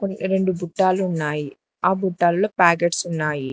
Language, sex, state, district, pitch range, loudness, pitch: Telugu, female, Telangana, Hyderabad, 165-190 Hz, -21 LUFS, 175 Hz